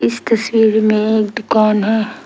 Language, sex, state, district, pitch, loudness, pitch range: Hindi, female, Arunachal Pradesh, Lower Dibang Valley, 215 Hz, -14 LUFS, 215-220 Hz